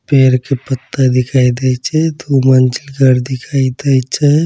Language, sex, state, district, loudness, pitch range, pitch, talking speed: Angika, male, Bihar, Begusarai, -13 LUFS, 130-140 Hz, 130 Hz, 160 wpm